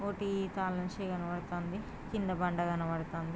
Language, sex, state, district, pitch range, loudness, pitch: Telugu, female, Andhra Pradesh, Krishna, 175-195 Hz, -36 LUFS, 180 Hz